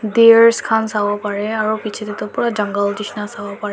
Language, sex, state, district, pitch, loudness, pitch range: Nagamese, male, Nagaland, Dimapur, 210 Hz, -17 LUFS, 205-220 Hz